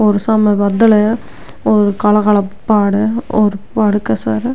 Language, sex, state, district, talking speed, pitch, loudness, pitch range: Rajasthani, female, Rajasthan, Nagaur, 185 wpm, 210 Hz, -13 LUFS, 205-215 Hz